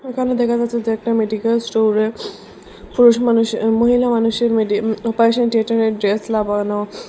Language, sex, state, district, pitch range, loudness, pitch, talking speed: Bengali, female, Assam, Hailakandi, 220-235 Hz, -17 LUFS, 225 Hz, 145 wpm